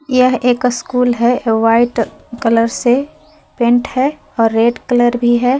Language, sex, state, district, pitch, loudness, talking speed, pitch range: Hindi, female, Jharkhand, Palamu, 240 Hz, -14 LUFS, 150 wpm, 235-255 Hz